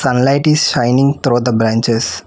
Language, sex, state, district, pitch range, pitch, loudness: English, female, Telangana, Hyderabad, 115-140 Hz, 125 Hz, -13 LUFS